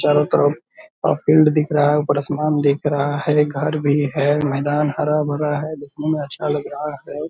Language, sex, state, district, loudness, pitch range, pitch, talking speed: Hindi, male, Bihar, Purnia, -19 LUFS, 145-150 Hz, 150 Hz, 195 wpm